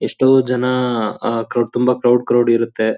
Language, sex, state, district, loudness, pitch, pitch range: Kannada, male, Karnataka, Shimoga, -16 LUFS, 120 Hz, 115-125 Hz